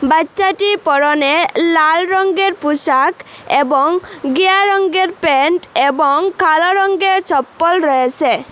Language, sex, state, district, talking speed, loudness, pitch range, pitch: Bengali, female, Assam, Hailakandi, 100 wpm, -13 LUFS, 295-380 Hz, 335 Hz